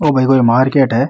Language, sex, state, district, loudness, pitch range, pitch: Rajasthani, male, Rajasthan, Nagaur, -12 LUFS, 130-135 Hz, 130 Hz